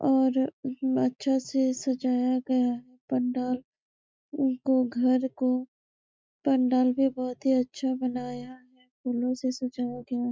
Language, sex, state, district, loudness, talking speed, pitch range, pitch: Hindi, female, Chhattisgarh, Bastar, -28 LUFS, 120 wpm, 250-260 Hz, 255 Hz